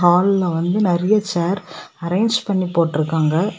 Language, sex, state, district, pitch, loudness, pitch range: Tamil, female, Tamil Nadu, Kanyakumari, 180 Hz, -18 LUFS, 170-200 Hz